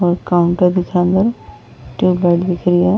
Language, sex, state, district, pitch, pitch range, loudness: Hindi, female, Uttar Pradesh, Varanasi, 180 Hz, 175-180 Hz, -15 LUFS